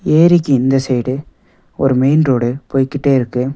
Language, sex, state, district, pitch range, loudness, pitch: Tamil, male, Tamil Nadu, Nilgiris, 130-145 Hz, -14 LUFS, 135 Hz